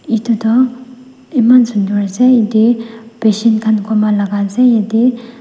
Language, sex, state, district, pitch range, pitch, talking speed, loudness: Nagamese, female, Nagaland, Dimapur, 215-245 Hz, 230 Hz, 135 wpm, -13 LUFS